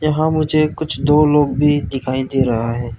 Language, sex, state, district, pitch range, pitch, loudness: Hindi, male, Arunachal Pradesh, Lower Dibang Valley, 130-150 Hz, 145 Hz, -16 LUFS